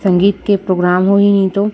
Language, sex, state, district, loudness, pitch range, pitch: Hindi, female, Chhattisgarh, Raipur, -13 LUFS, 185-200 Hz, 195 Hz